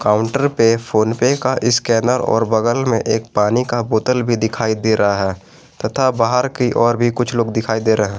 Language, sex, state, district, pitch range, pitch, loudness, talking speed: Hindi, male, Jharkhand, Garhwa, 110-125 Hz, 115 Hz, -16 LUFS, 210 wpm